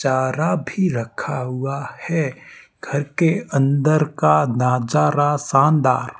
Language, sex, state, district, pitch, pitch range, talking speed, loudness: Hindi, male, Rajasthan, Barmer, 140 Hz, 130-155 Hz, 105 wpm, -19 LUFS